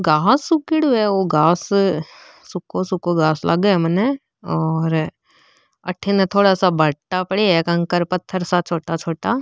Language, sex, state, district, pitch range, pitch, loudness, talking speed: Marwari, female, Rajasthan, Nagaur, 165-200 Hz, 185 Hz, -18 LUFS, 120 wpm